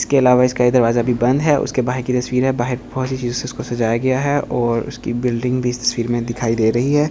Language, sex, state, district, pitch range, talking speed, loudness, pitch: Hindi, male, Delhi, New Delhi, 120-130 Hz, 270 wpm, -18 LUFS, 125 Hz